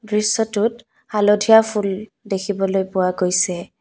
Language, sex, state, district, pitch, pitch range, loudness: Assamese, female, Assam, Kamrup Metropolitan, 205 Hz, 190-220 Hz, -19 LUFS